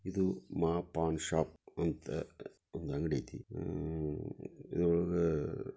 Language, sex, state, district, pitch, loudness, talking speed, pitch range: Kannada, male, Karnataka, Dharwad, 80 Hz, -36 LUFS, 125 wpm, 80-85 Hz